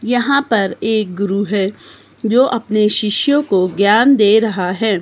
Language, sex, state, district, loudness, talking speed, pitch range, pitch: Hindi, female, Himachal Pradesh, Shimla, -15 LUFS, 155 wpm, 200-230 Hz, 215 Hz